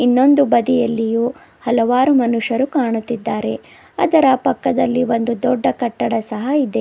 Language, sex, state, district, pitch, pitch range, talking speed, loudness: Kannada, female, Karnataka, Bidar, 245 Hz, 235-265 Hz, 105 wpm, -17 LUFS